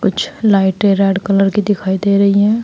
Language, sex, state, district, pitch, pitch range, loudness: Hindi, female, Uttar Pradesh, Saharanpur, 200 Hz, 195-205 Hz, -14 LUFS